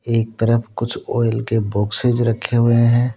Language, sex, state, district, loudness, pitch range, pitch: Hindi, male, Rajasthan, Jaipur, -18 LUFS, 115-120 Hz, 115 Hz